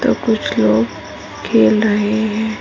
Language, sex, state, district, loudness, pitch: Hindi, female, Rajasthan, Nagaur, -15 LUFS, 215 Hz